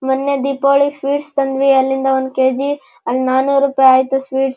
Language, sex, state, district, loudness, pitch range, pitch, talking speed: Kannada, male, Karnataka, Shimoga, -15 LUFS, 265-275 Hz, 270 Hz, 170 wpm